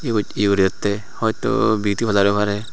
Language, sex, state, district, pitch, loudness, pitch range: Chakma, male, Tripura, Unakoti, 105 Hz, -19 LUFS, 100-110 Hz